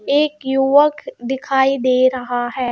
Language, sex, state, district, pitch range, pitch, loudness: Hindi, female, Madhya Pradesh, Bhopal, 255-275 Hz, 265 Hz, -17 LUFS